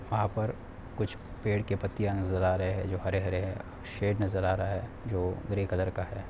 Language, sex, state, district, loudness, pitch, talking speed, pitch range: Hindi, male, Bihar, Samastipur, -32 LUFS, 95 Hz, 220 wpm, 95-100 Hz